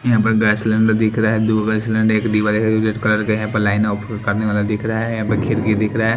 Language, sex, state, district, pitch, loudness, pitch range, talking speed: Hindi, male, Haryana, Jhajjar, 110 Hz, -17 LUFS, 105-110 Hz, 280 wpm